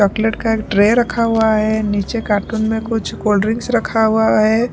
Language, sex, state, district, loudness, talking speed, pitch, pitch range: Hindi, female, Punjab, Pathankot, -16 LUFS, 190 wpm, 220 Hz, 215-225 Hz